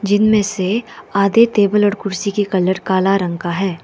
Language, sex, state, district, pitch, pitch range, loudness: Hindi, female, Arunachal Pradesh, Lower Dibang Valley, 200 Hz, 190-205 Hz, -16 LUFS